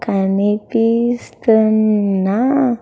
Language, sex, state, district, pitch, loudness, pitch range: Telugu, female, Andhra Pradesh, Sri Satya Sai, 220 Hz, -15 LUFS, 205-235 Hz